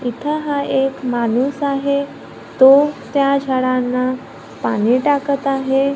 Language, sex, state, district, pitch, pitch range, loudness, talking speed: Marathi, female, Maharashtra, Gondia, 275 Hz, 255-280 Hz, -17 LUFS, 110 wpm